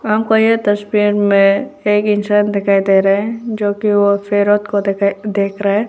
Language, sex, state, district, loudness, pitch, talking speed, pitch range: Hindi, female, Arunachal Pradesh, Lower Dibang Valley, -14 LUFS, 205 Hz, 195 wpm, 200-210 Hz